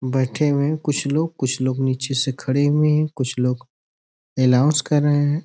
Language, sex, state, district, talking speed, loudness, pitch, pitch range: Hindi, male, Uttar Pradesh, Ghazipur, 185 wpm, -20 LUFS, 140 Hz, 130-150 Hz